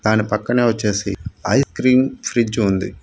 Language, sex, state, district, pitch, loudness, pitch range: Telugu, male, Andhra Pradesh, Chittoor, 110 Hz, -18 LUFS, 105-125 Hz